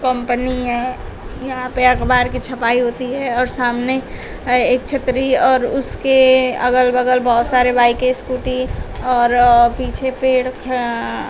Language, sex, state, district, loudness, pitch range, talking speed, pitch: Hindi, female, Uttar Pradesh, Shamli, -16 LUFS, 245-255 Hz, 145 wpm, 255 Hz